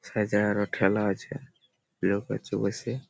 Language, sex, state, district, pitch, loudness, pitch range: Bengali, male, West Bengal, Malda, 105 Hz, -28 LUFS, 100-110 Hz